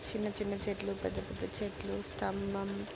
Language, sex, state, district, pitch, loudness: Telugu, female, Andhra Pradesh, Krishna, 100 Hz, -38 LUFS